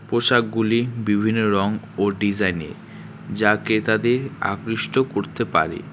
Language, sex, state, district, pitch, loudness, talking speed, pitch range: Bengali, male, West Bengal, Alipurduar, 110 Hz, -21 LUFS, 100 wpm, 105-120 Hz